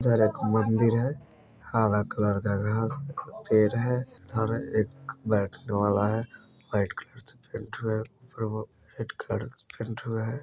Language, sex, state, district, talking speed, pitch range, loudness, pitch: Bajjika, male, Bihar, Vaishali, 155 wpm, 110-120 Hz, -28 LUFS, 110 Hz